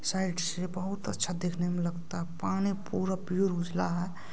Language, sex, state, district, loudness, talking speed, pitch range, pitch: Hindi, male, Bihar, Kishanganj, -32 LUFS, 165 wpm, 175-190 Hz, 180 Hz